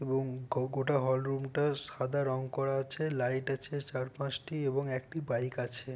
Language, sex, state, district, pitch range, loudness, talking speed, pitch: Bengali, male, West Bengal, Purulia, 130-140 Hz, -34 LUFS, 150 wpm, 135 Hz